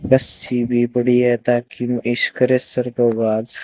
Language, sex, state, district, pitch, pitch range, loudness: Hindi, male, Rajasthan, Bikaner, 120 Hz, 120-125 Hz, -18 LUFS